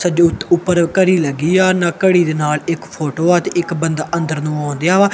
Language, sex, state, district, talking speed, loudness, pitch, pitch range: Punjabi, male, Punjab, Kapurthala, 235 wpm, -15 LUFS, 170 Hz, 155-180 Hz